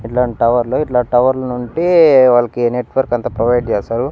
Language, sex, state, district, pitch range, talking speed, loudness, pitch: Telugu, male, Andhra Pradesh, Annamaya, 120-125 Hz, 145 wpm, -14 LUFS, 120 Hz